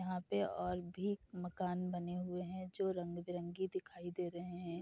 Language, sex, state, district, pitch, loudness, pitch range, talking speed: Hindi, female, Uttar Pradesh, Jyotiba Phule Nagar, 180 Hz, -42 LUFS, 175-185 Hz, 175 wpm